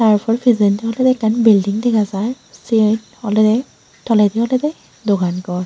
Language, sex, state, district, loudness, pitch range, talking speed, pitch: Chakma, female, Tripura, Unakoti, -16 LUFS, 205-235 Hz, 140 wpm, 220 Hz